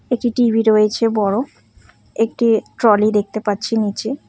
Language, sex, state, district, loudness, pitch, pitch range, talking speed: Bengali, female, West Bengal, Cooch Behar, -17 LUFS, 225 Hz, 210-235 Hz, 125 wpm